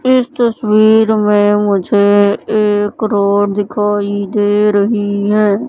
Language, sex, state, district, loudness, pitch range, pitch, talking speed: Hindi, female, Madhya Pradesh, Katni, -12 LUFS, 205-215 Hz, 205 Hz, 105 wpm